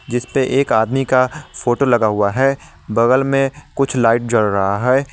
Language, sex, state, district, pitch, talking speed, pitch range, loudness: Hindi, male, Jharkhand, Garhwa, 130 Hz, 175 wpm, 115-135 Hz, -16 LUFS